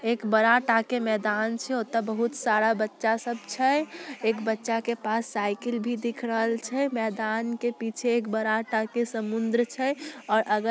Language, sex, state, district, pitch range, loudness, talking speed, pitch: Magahi, female, Bihar, Samastipur, 220-240 Hz, -27 LUFS, 175 wpm, 230 Hz